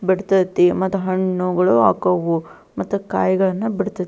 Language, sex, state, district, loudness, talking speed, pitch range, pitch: Kannada, female, Karnataka, Belgaum, -18 LUFS, 120 wpm, 180-195 Hz, 185 Hz